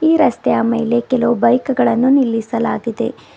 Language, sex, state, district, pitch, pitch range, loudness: Kannada, female, Karnataka, Bidar, 240 Hz, 235-260 Hz, -15 LUFS